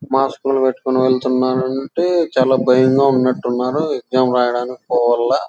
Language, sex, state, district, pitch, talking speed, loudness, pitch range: Telugu, male, Andhra Pradesh, Chittoor, 130 Hz, 120 wpm, -16 LUFS, 125-135 Hz